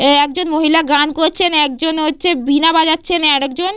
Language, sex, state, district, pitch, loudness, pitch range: Bengali, female, West Bengal, Purulia, 320 Hz, -13 LUFS, 290-335 Hz